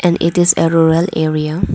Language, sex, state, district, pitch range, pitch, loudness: English, female, Arunachal Pradesh, Lower Dibang Valley, 160-175 Hz, 165 Hz, -13 LUFS